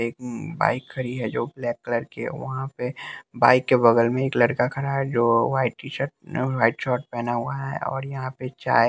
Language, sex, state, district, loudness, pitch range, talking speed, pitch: Hindi, male, Bihar, West Champaran, -24 LUFS, 120-135 Hz, 235 wpm, 130 Hz